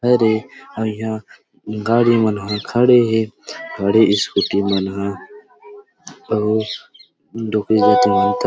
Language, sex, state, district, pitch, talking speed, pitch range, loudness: Chhattisgarhi, male, Chhattisgarh, Rajnandgaon, 110 Hz, 105 wpm, 105-120 Hz, -17 LUFS